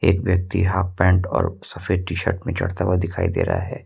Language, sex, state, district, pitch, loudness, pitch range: Hindi, male, Jharkhand, Ranchi, 95 Hz, -21 LUFS, 90-95 Hz